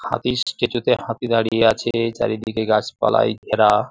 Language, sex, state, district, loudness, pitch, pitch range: Bengali, male, West Bengal, Jhargram, -19 LUFS, 115 Hz, 110-120 Hz